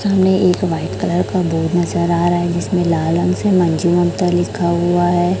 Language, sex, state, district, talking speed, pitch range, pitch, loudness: Hindi, female, Chhattisgarh, Raipur, 210 wpm, 170-180 Hz, 175 Hz, -16 LUFS